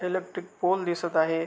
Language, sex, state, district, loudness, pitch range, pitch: Marathi, male, Maharashtra, Aurangabad, -27 LUFS, 165-185 Hz, 175 Hz